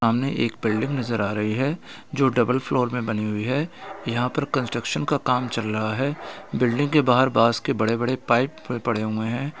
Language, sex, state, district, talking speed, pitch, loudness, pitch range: Hindi, male, Chhattisgarh, Raigarh, 205 wpm, 125 Hz, -23 LUFS, 115-135 Hz